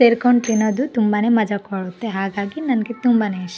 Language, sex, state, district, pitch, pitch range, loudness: Kannada, female, Karnataka, Bellary, 220 Hz, 200-235 Hz, -19 LUFS